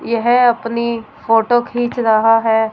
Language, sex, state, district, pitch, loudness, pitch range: Hindi, female, Punjab, Fazilka, 230 Hz, -15 LUFS, 225-240 Hz